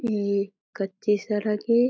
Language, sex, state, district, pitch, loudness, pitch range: Surgujia, female, Chhattisgarh, Sarguja, 210 Hz, -26 LUFS, 200-220 Hz